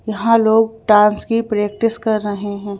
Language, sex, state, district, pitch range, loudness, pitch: Hindi, female, Madhya Pradesh, Bhopal, 205-225 Hz, -16 LUFS, 215 Hz